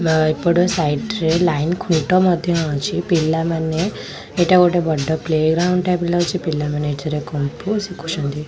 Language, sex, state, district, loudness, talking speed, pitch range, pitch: Odia, female, Odisha, Khordha, -18 LUFS, 140 wpm, 155-175 Hz, 165 Hz